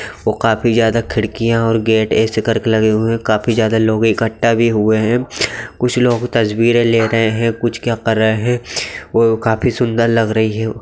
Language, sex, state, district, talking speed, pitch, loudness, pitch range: Magahi, male, Bihar, Gaya, 195 wpm, 115 Hz, -15 LUFS, 110-115 Hz